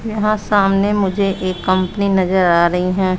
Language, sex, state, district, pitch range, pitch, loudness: Hindi, female, Bihar, West Champaran, 185-200 Hz, 190 Hz, -16 LUFS